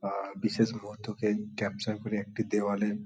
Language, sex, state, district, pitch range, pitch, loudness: Bengali, male, West Bengal, Kolkata, 100-110 Hz, 105 Hz, -32 LUFS